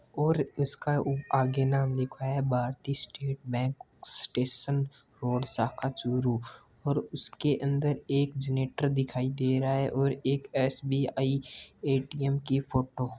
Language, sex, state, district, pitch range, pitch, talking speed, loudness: Hindi, male, Rajasthan, Churu, 130-140 Hz, 135 Hz, 135 wpm, -30 LUFS